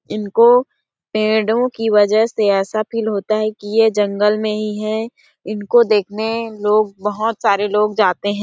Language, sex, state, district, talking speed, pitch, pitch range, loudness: Hindi, female, Chhattisgarh, Sarguja, 150 wpm, 215 Hz, 210-225 Hz, -17 LUFS